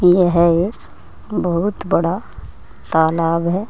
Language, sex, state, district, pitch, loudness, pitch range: Hindi, female, Uttar Pradesh, Saharanpur, 170 Hz, -17 LUFS, 170-180 Hz